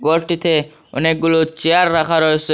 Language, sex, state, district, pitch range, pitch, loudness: Bengali, male, Assam, Hailakandi, 155-165 Hz, 160 Hz, -15 LUFS